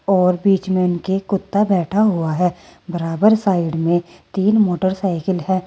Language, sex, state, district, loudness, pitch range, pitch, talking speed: Hindi, female, Uttar Pradesh, Saharanpur, -18 LUFS, 175-195 Hz, 185 Hz, 150 wpm